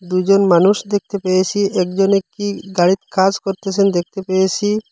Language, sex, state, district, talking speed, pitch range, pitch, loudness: Bengali, male, Assam, Hailakandi, 145 wpm, 185-200 Hz, 195 Hz, -16 LUFS